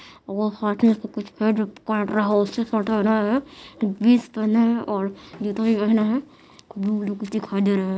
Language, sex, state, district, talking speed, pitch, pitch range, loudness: Hindi, female, Bihar, Madhepura, 195 wpm, 215 Hz, 205-225 Hz, -22 LUFS